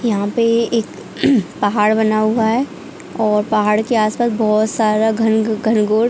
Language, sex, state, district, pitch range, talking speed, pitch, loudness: Hindi, female, Chhattisgarh, Bilaspur, 215-230 Hz, 155 wpm, 220 Hz, -16 LUFS